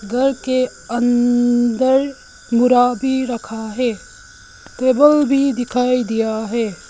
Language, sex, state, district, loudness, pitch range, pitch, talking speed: Hindi, female, Arunachal Pradesh, Lower Dibang Valley, -17 LUFS, 240-265 Hz, 250 Hz, 95 wpm